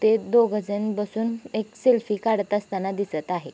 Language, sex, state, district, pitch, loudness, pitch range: Hindi, female, Maharashtra, Sindhudurg, 210 Hz, -24 LUFS, 200-225 Hz